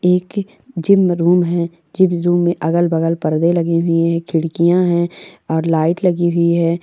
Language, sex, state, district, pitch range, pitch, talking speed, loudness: Angika, female, Bihar, Madhepura, 165-175 Hz, 170 Hz, 165 wpm, -16 LUFS